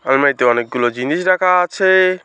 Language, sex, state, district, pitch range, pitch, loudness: Bengali, male, West Bengal, Alipurduar, 125-185 Hz, 175 Hz, -15 LUFS